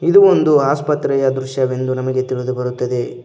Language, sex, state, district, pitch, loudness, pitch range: Kannada, male, Karnataka, Koppal, 130 Hz, -16 LUFS, 130-140 Hz